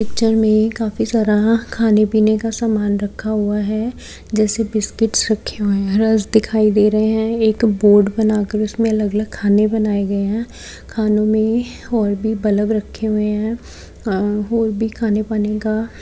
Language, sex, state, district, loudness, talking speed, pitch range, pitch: Hindi, female, Odisha, Nuapada, -17 LUFS, 170 wpm, 210-220 Hz, 215 Hz